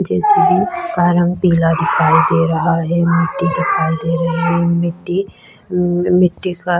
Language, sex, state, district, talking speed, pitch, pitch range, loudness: Hindi, female, Chhattisgarh, Sukma, 150 wpm, 175 Hz, 170-180 Hz, -15 LUFS